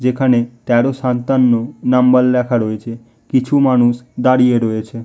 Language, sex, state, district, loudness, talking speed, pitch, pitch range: Bengali, male, West Bengal, Malda, -15 LUFS, 120 wpm, 125 Hz, 120-130 Hz